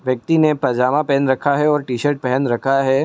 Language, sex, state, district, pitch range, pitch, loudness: Hindi, male, Uttar Pradesh, Muzaffarnagar, 130-150 Hz, 135 Hz, -17 LUFS